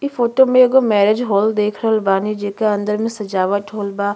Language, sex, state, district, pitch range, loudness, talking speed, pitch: Bhojpuri, female, Uttar Pradesh, Gorakhpur, 205-230 Hz, -16 LUFS, 215 wpm, 210 Hz